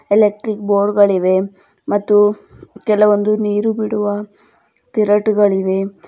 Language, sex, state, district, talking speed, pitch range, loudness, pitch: Kannada, female, Karnataka, Bidar, 80 wpm, 200-210 Hz, -15 LUFS, 205 Hz